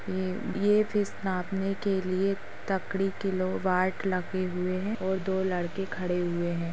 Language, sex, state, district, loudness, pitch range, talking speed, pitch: Hindi, female, Bihar, Saharsa, -29 LUFS, 185-195 Hz, 150 wpm, 190 Hz